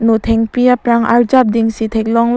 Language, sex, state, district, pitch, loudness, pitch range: Karbi, female, Assam, Karbi Anglong, 230 Hz, -13 LUFS, 225-240 Hz